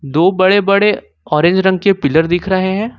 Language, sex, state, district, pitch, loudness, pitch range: Hindi, male, Jharkhand, Ranchi, 185 Hz, -13 LUFS, 160-195 Hz